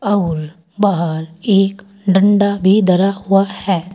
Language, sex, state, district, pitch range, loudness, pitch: Hindi, female, Uttar Pradesh, Saharanpur, 175-200 Hz, -15 LUFS, 195 Hz